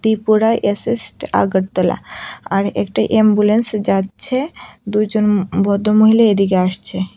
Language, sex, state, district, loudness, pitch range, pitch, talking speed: Bengali, female, Tripura, West Tripura, -16 LUFS, 190-220 Hz, 210 Hz, 100 wpm